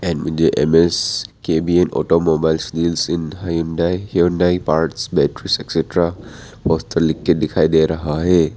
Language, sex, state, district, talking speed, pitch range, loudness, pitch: Hindi, male, Arunachal Pradesh, Papum Pare, 110 wpm, 80-90 Hz, -17 LUFS, 85 Hz